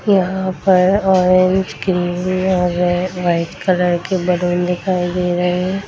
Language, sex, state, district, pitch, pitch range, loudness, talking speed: Hindi, female, Bihar, Darbhanga, 180 Hz, 175-185 Hz, -16 LUFS, 145 wpm